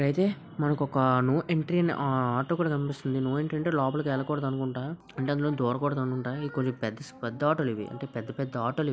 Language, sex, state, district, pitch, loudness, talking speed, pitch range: Telugu, male, Andhra Pradesh, Visakhapatnam, 140 Hz, -29 LUFS, 175 wpm, 130-150 Hz